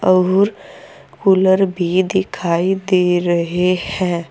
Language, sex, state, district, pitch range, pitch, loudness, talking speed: Hindi, female, Uttar Pradesh, Saharanpur, 175-190 Hz, 185 Hz, -16 LUFS, 95 wpm